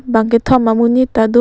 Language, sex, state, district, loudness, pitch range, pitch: Karbi, female, Assam, Karbi Anglong, -13 LUFS, 225-255 Hz, 235 Hz